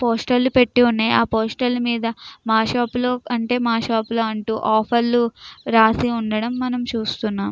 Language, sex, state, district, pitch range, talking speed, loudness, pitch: Telugu, female, Andhra Pradesh, Krishna, 220-245 Hz, 200 wpm, -19 LUFS, 230 Hz